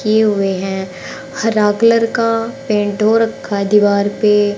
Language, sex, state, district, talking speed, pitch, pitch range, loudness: Hindi, female, Haryana, Jhajjar, 155 wpm, 210 Hz, 200-225 Hz, -15 LUFS